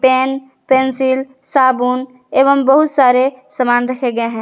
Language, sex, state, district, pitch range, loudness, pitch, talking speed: Hindi, female, Jharkhand, Garhwa, 255-265 Hz, -14 LUFS, 260 Hz, 135 wpm